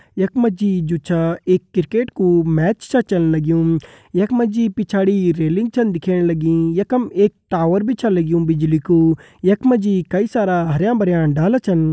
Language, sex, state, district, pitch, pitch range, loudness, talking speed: Hindi, male, Uttarakhand, Uttarkashi, 185 Hz, 165-210 Hz, -17 LUFS, 180 wpm